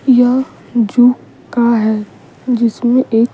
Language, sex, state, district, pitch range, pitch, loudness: Hindi, female, Bihar, Patna, 230-250 Hz, 240 Hz, -14 LUFS